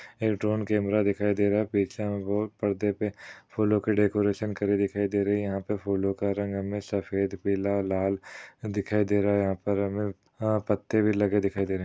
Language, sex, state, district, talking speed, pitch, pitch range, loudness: Hindi, male, Uttar Pradesh, Jalaun, 225 wpm, 100 Hz, 100-105 Hz, -27 LUFS